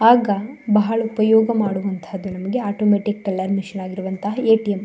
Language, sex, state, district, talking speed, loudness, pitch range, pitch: Kannada, female, Karnataka, Shimoga, 125 wpm, -20 LUFS, 195-220 Hz, 205 Hz